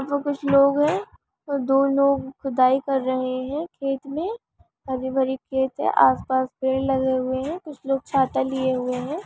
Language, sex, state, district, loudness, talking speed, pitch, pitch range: Hindi, female, Chhattisgarh, Bastar, -23 LUFS, 170 wpm, 270 Hz, 260-280 Hz